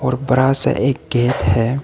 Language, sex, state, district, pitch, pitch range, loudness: Hindi, male, Arunachal Pradesh, Papum Pare, 130 Hz, 120-135 Hz, -16 LUFS